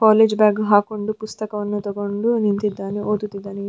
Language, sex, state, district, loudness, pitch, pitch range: Kannada, female, Karnataka, Dharwad, -20 LUFS, 210 Hz, 205-215 Hz